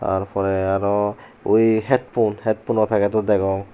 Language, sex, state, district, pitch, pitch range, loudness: Chakma, male, Tripura, Unakoti, 105 Hz, 100-110 Hz, -20 LUFS